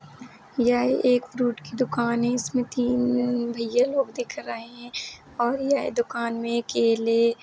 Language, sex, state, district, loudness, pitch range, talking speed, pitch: Hindi, female, Uttar Pradesh, Jalaun, -25 LUFS, 235-250 Hz, 170 wpm, 245 Hz